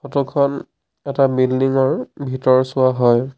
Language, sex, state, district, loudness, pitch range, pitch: Assamese, male, Assam, Sonitpur, -17 LUFS, 130-140 Hz, 130 Hz